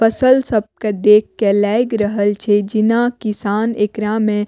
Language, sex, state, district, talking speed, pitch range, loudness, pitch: Maithili, female, Bihar, Madhepura, 175 wpm, 210-225 Hz, -16 LUFS, 215 Hz